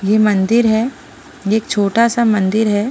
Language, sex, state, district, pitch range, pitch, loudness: Hindi, female, Punjab, Pathankot, 205-230 Hz, 215 Hz, -15 LUFS